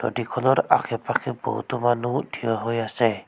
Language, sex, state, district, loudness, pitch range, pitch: Assamese, female, Assam, Sonitpur, -24 LUFS, 115-125 Hz, 120 Hz